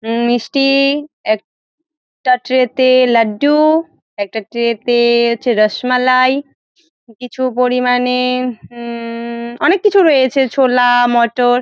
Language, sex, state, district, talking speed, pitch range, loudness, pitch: Bengali, female, West Bengal, Jalpaiguri, 110 wpm, 235-275 Hz, -14 LUFS, 250 Hz